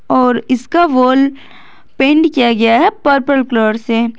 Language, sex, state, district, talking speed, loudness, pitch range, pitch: Hindi, female, Jharkhand, Garhwa, 145 wpm, -12 LUFS, 235-280 Hz, 255 Hz